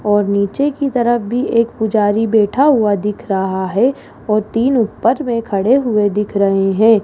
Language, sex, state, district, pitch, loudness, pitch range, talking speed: Hindi, female, Rajasthan, Jaipur, 220 Hz, -15 LUFS, 205-240 Hz, 180 wpm